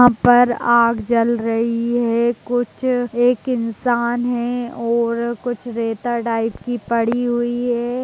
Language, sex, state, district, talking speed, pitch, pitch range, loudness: Hindi, female, Bihar, Begusarai, 135 wpm, 240 Hz, 235-245 Hz, -19 LUFS